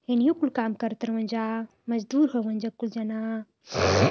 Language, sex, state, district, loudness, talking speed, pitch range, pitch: Hindi, female, Uttar Pradesh, Varanasi, -27 LUFS, 175 wpm, 225-240 Hz, 230 Hz